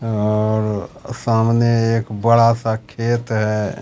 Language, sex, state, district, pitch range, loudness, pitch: Hindi, male, Bihar, Katihar, 105-115 Hz, -18 LUFS, 115 Hz